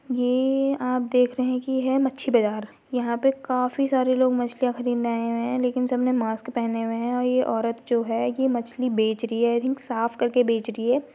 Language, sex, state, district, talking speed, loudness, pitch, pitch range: Hindi, female, Uttarakhand, Uttarkashi, 215 wpm, -24 LUFS, 250 Hz, 235-255 Hz